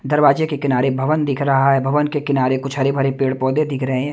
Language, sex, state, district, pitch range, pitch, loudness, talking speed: Hindi, male, Haryana, Jhajjar, 135-145 Hz, 135 Hz, -18 LUFS, 230 wpm